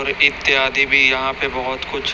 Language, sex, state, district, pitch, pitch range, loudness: Hindi, male, Chhattisgarh, Raipur, 135 Hz, 130-140 Hz, -16 LUFS